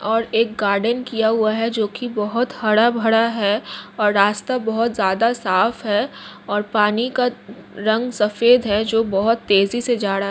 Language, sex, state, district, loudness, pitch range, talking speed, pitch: Hindi, female, Jharkhand, Jamtara, -19 LUFS, 210-235 Hz, 175 wpm, 225 Hz